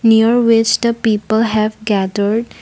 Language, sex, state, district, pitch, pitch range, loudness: English, female, Assam, Kamrup Metropolitan, 220 Hz, 215-230 Hz, -14 LUFS